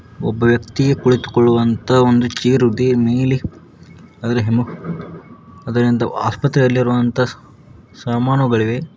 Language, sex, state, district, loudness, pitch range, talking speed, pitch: Kannada, male, Karnataka, Koppal, -16 LUFS, 115-125 Hz, 80 wpm, 120 Hz